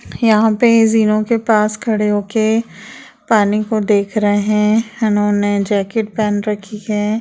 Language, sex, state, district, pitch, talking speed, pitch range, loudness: Hindi, female, Bihar, Vaishali, 215 Hz, 140 wpm, 205-220 Hz, -15 LUFS